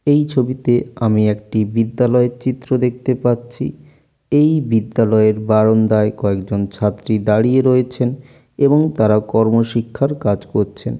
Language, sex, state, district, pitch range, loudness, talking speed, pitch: Bengali, male, West Bengal, Jalpaiguri, 110-130 Hz, -16 LUFS, 115 wpm, 120 Hz